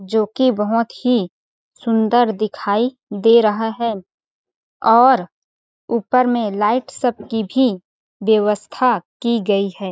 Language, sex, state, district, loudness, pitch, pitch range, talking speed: Hindi, female, Chhattisgarh, Balrampur, -17 LUFS, 225 Hz, 210-245 Hz, 115 wpm